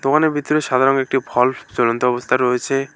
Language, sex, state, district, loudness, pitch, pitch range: Bengali, male, West Bengal, Alipurduar, -18 LUFS, 130 Hz, 125-135 Hz